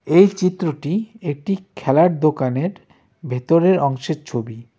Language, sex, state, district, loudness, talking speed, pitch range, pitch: Bengali, male, West Bengal, Darjeeling, -19 LUFS, 100 wpm, 135-185 Hz, 160 Hz